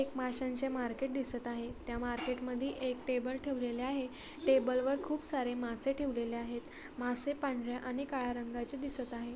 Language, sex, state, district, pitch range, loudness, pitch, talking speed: Marathi, female, Maharashtra, Solapur, 245-270 Hz, -37 LUFS, 255 Hz, 160 wpm